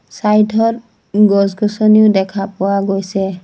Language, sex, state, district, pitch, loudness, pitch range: Assamese, female, Assam, Sonitpur, 205 Hz, -14 LUFS, 195-215 Hz